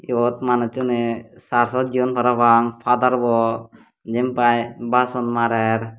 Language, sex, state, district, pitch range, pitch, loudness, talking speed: Chakma, male, Tripura, Dhalai, 115-125 Hz, 120 Hz, -19 LUFS, 110 wpm